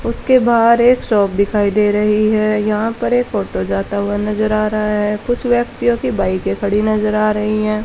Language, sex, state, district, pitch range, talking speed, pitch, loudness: Hindi, female, Haryana, Charkhi Dadri, 210-230 Hz, 205 wpm, 215 Hz, -15 LUFS